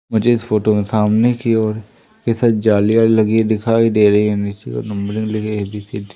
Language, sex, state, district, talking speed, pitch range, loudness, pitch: Hindi, male, Madhya Pradesh, Umaria, 245 wpm, 105-115 Hz, -16 LUFS, 110 Hz